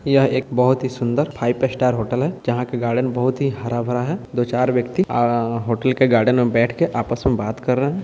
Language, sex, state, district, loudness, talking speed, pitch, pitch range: Hindi, male, Bihar, Purnia, -19 LUFS, 230 wpm, 125 Hz, 120-130 Hz